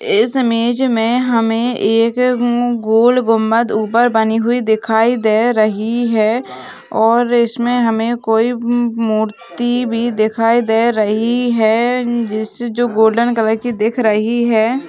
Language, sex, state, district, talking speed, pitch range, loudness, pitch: Hindi, female, West Bengal, Dakshin Dinajpur, 130 wpm, 220-240 Hz, -15 LUFS, 230 Hz